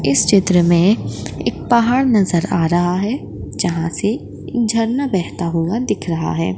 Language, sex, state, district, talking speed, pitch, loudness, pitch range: Hindi, female, Maharashtra, Sindhudurg, 165 wpm, 180 Hz, -17 LUFS, 170-230 Hz